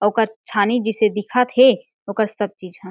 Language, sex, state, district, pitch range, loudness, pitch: Chhattisgarhi, female, Chhattisgarh, Jashpur, 205-235 Hz, -19 LUFS, 220 Hz